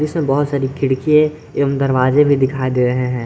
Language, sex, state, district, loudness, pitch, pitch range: Hindi, male, Jharkhand, Garhwa, -16 LUFS, 135 Hz, 130-145 Hz